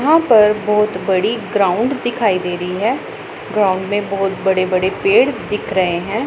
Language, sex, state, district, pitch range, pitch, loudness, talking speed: Hindi, female, Punjab, Pathankot, 190-230 Hz, 205 Hz, -16 LUFS, 170 wpm